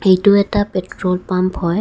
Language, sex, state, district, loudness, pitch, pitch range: Assamese, female, Assam, Kamrup Metropolitan, -16 LUFS, 185 Hz, 185-200 Hz